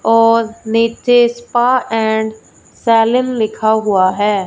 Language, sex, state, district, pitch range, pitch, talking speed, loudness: Hindi, female, Punjab, Fazilka, 220-240 Hz, 225 Hz, 105 wpm, -14 LUFS